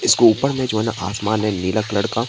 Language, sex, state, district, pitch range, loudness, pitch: Hindi, male, Bihar, Katihar, 105-115 Hz, -19 LUFS, 110 Hz